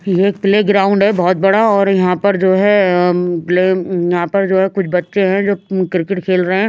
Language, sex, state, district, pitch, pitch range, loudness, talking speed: Hindi, female, Haryana, Rohtak, 190 Hz, 180-200 Hz, -14 LUFS, 215 wpm